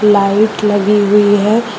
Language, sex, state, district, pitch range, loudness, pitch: Hindi, female, Jharkhand, Deoghar, 205-210 Hz, -11 LUFS, 210 Hz